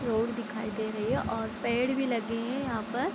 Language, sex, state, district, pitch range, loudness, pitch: Hindi, female, Bihar, Sitamarhi, 220-250 Hz, -31 LUFS, 230 Hz